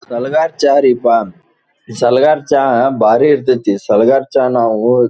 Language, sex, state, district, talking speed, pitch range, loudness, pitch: Kannada, male, Karnataka, Dharwad, 130 wpm, 120-155 Hz, -12 LUFS, 135 Hz